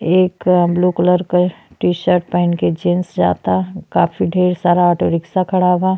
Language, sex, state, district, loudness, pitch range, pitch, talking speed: Bhojpuri, female, Uttar Pradesh, Deoria, -16 LUFS, 175-180 Hz, 180 Hz, 160 wpm